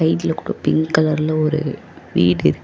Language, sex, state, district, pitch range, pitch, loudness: Tamil, female, Tamil Nadu, Chennai, 145-160 Hz, 155 Hz, -19 LUFS